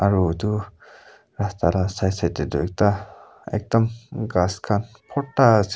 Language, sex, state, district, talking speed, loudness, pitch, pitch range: Nagamese, male, Nagaland, Kohima, 145 wpm, -23 LUFS, 100 Hz, 95-110 Hz